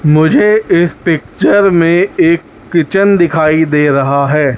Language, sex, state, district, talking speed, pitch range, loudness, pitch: Hindi, male, Chhattisgarh, Raipur, 130 wpm, 150-180 Hz, -10 LUFS, 165 Hz